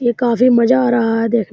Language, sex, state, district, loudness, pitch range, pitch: Hindi, male, Uttar Pradesh, Muzaffarnagar, -14 LUFS, 230-245 Hz, 240 Hz